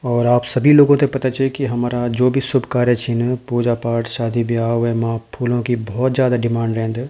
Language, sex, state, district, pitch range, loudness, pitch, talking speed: Garhwali, male, Uttarakhand, Tehri Garhwal, 115-130 Hz, -17 LUFS, 120 Hz, 210 wpm